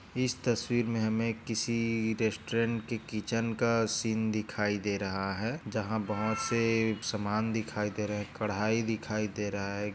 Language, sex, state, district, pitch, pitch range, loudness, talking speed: Hindi, male, Maharashtra, Nagpur, 110 Hz, 105-115 Hz, -32 LUFS, 170 wpm